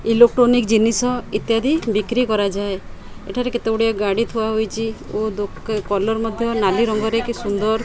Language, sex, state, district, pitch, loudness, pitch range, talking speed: Odia, female, Odisha, Khordha, 225 Hz, -19 LUFS, 210-235 Hz, 135 wpm